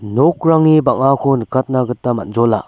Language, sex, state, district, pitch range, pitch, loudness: Garo, male, Meghalaya, West Garo Hills, 115-145 Hz, 130 Hz, -14 LUFS